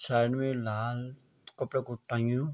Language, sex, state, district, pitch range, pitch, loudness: Garhwali, male, Uttarakhand, Tehri Garhwal, 120-130 Hz, 125 Hz, -32 LUFS